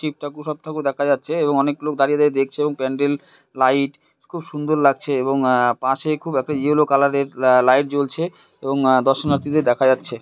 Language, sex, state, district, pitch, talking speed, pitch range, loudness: Bengali, male, West Bengal, Purulia, 140 Hz, 195 wpm, 135-150 Hz, -19 LUFS